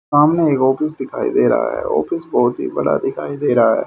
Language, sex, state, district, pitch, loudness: Hindi, male, Haryana, Rohtak, 160 Hz, -17 LUFS